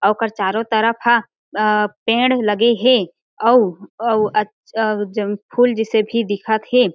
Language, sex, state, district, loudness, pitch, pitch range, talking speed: Chhattisgarhi, female, Chhattisgarh, Jashpur, -17 LUFS, 220 Hz, 210-235 Hz, 175 wpm